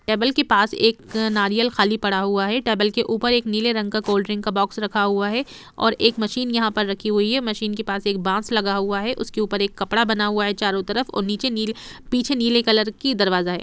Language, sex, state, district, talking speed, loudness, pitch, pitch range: Hindi, female, Jharkhand, Sahebganj, 250 wpm, -21 LUFS, 215 Hz, 205-230 Hz